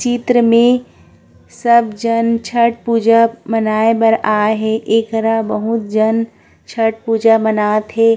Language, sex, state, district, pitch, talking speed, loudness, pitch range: Chhattisgarhi, female, Chhattisgarh, Korba, 225 Hz, 125 wpm, -14 LUFS, 220-230 Hz